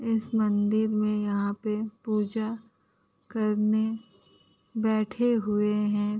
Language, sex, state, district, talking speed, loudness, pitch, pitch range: Hindi, female, Uttar Pradesh, Ghazipur, 95 wpm, -27 LUFS, 215 Hz, 210-220 Hz